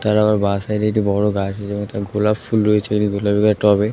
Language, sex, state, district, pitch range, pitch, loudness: Bengali, male, West Bengal, Kolkata, 100-105 Hz, 105 Hz, -18 LUFS